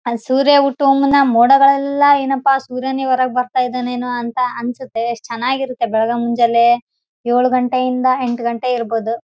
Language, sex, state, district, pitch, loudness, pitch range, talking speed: Kannada, female, Karnataka, Raichur, 250 Hz, -15 LUFS, 235-265 Hz, 145 wpm